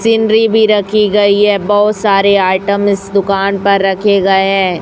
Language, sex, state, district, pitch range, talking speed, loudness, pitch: Hindi, female, Chhattisgarh, Raipur, 195-210 Hz, 175 wpm, -11 LUFS, 200 Hz